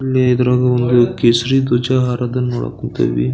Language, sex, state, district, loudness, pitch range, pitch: Kannada, male, Karnataka, Belgaum, -15 LUFS, 120-125 Hz, 125 Hz